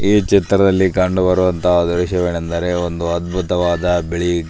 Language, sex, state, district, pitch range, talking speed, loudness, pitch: Kannada, male, Karnataka, Belgaum, 85-95 Hz, 120 wpm, -16 LUFS, 90 Hz